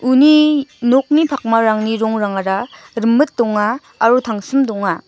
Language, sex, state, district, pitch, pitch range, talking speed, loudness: Garo, female, Meghalaya, West Garo Hills, 230 Hz, 215-275 Hz, 105 wpm, -15 LUFS